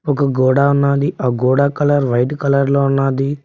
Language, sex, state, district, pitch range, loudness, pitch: Telugu, male, Telangana, Mahabubabad, 135-140 Hz, -15 LUFS, 140 Hz